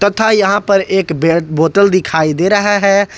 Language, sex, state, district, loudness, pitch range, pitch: Hindi, male, Jharkhand, Ranchi, -12 LUFS, 165-205 Hz, 195 Hz